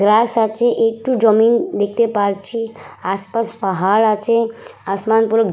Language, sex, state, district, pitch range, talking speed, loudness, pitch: Bengali, female, West Bengal, Purulia, 205-230 Hz, 130 wpm, -16 LUFS, 225 Hz